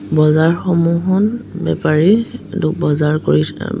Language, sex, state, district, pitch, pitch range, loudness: Assamese, female, Assam, Sonitpur, 165 Hz, 155-185 Hz, -15 LUFS